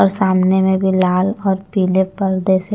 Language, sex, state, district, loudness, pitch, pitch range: Hindi, female, Punjab, Pathankot, -16 LUFS, 190 Hz, 185-195 Hz